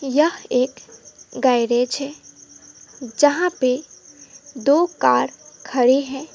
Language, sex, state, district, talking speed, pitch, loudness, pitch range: Hindi, female, West Bengal, Alipurduar, 95 wpm, 270 Hz, -19 LUFS, 250-295 Hz